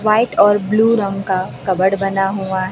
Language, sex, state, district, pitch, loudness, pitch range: Hindi, female, Chhattisgarh, Raipur, 195 Hz, -16 LUFS, 190-215 Hz